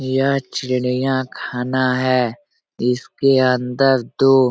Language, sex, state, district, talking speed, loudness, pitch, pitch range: Hindi, male, Bihar, Jahanabad, 105 wpm, -18 LUFS, 130 Hz, 125-135 Hz